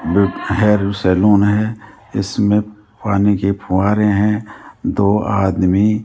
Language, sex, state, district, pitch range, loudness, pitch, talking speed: Hindi, male, Rajasthan, Jaipur, 100-105 Hz, -16 LUFS, 105 Hz, 110 wpm